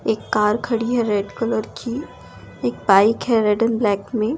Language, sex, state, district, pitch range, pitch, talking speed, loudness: Hindi, female, Delhi, New Delhi, 210-230 Hz, 220 Hz, 205 wpm, -20 LUFS